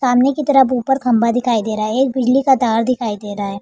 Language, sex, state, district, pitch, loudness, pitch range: Hindi, female, Uttar Pradesh, Jalaun, 245 Hz, -16 LUFS, 225-265 Hz